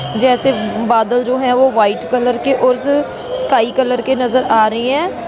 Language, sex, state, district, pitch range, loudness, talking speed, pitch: Hindi, female, Bihar, Muzaffarpur, 235-265 Hz, -14 LUFS, 180 wpm, 250 Hz